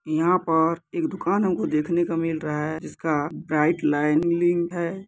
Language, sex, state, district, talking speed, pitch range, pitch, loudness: Hindi, male, Bihar, Muzaffarpur, 165 wpm, 155-175 Hz, 165 Hz, -23 LUFS